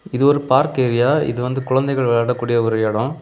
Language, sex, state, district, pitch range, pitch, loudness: Tamil, male, Tamil Nadu, Kanyakumari, 120-135 Hz, 125 Hz, -18 LUFS